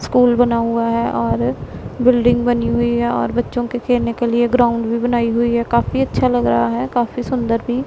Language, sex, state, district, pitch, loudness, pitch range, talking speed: Hindi, female, Punjab, Pathankot, 235 Hz, -17 LUFS, 230-245 Hz, 220 wpm